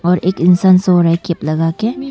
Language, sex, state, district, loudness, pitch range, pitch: Hindi, female, Arunachal Pradesh, Longding, -13 LUFS, 170-185 Hz, 180 Hz